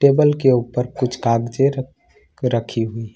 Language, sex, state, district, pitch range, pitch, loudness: Hindi, male, Jharkhand, Ranchi, 115-135 Hz, 125 Hz, -19 LUFS